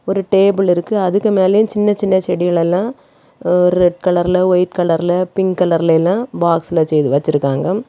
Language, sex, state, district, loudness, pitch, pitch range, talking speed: Tamil, female, Tamil Nadu, Kanyakumari, -15 LUFS, 180 Hz, 170-195 Hz, 150 wpm